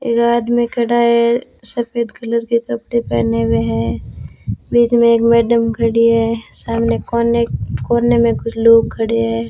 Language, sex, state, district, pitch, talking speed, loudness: Hindi, female, Rajasthan, Bikaner, 230 Hz, 160 wpm, -15 LUFS